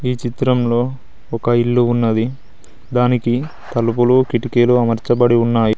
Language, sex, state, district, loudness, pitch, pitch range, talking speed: Telugu, male, Telangana, Mahabubabad, -16 LUFS, 120 Hz, 115-125 Hz, 105 wpm